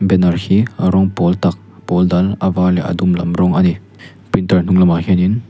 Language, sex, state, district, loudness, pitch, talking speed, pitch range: Mizo, male, Mizoram, Aizawl, -14 LUFS, 90 Hz, 230 wpm, 90-95 Hz